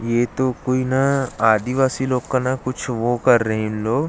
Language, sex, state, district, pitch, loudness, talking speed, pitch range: Hindi, male, Chhattisgarh, Jashpur, 130 Hz, -20 LUFS, 220 wpm, 115-130 Hz